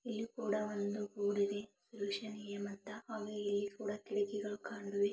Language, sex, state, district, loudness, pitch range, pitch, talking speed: Kannada, female, Karnataka, Belgaum, -40 LUFS, 200-210 Hz, 205 Hz, 140 wpm